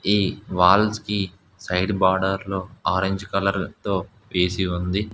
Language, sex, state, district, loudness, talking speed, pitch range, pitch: Telugu, male, Telangana, Hyderabad, -22 LUFS, 115 wpm, 95-100 Hz, 95 Hz